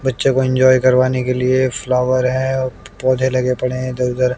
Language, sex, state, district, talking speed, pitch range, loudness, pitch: Hindi, male, Haryana, Jhajjar, 220 wpm, 125-130 Hz, -16 LUFS, 130 Hz